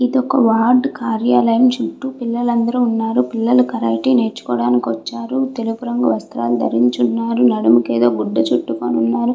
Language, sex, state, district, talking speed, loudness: Telugu, female, Andhra Pradesh, Visakhapatnam, 130 wpm, -16 LUFS